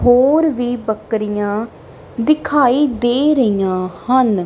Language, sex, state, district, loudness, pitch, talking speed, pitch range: Punjabi, female, Punjab, Kapurthala, -16 LUFS, 240 Hz, 95 wpm, 210-265 Hz